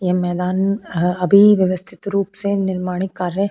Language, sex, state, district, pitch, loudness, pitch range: Hindi, female, Goa, North and South Goa, 185 Hz, -18 LUFS, 180-200 Hz